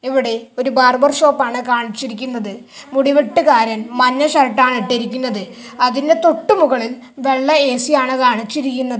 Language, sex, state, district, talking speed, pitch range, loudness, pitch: Malayalam, male, Kerala, Kasaragod, 120 wpm, 245-280 Hz, -15 LUFS, 255 Hz